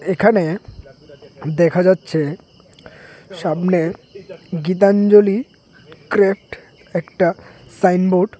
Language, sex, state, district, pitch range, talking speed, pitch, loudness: Bengali, male, Tripura, West Tripura, 165-200 Hz, 65 wpm, 185 Hz, -17 LUFS